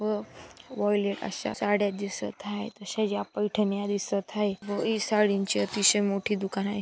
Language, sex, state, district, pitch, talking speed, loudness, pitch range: Marathi, female, Maharashtra, Dhule, 205 Hz, 125 wpm, -28 LUFS, 200-210 Hz